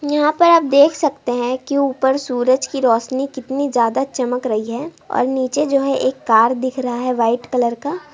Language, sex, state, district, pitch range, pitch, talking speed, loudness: Hindi, female, Bihar, Begusarai, 245-285 Hz, 260 Hz, 205 wpm, -17 LUFS